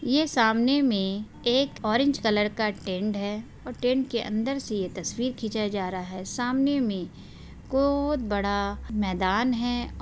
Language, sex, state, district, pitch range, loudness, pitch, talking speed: Hindi, female, Bihar, Purnia, 200-255 Hz, -26 LUFS, 225 Hz, 155 wpm